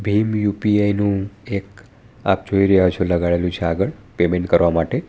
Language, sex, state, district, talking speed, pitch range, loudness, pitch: Gujarati, male, Gujarat, Valsad, 155 wpm, 90-105 Hz, -19 LUFS, 100 Hz